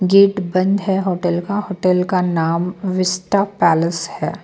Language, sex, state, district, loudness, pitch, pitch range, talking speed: Hindi, female, Bihar, Patna, -17 LUFS, 185 Hz, 175-195 Hz, 150 wpm